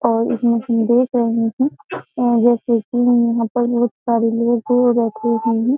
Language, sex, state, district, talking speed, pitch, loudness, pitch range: Hindi, female, Uttar Pradesh, Jyotiba Phule Nagar, 165 wpm, 235 Hz, -17 LUFS, 230-240 Hz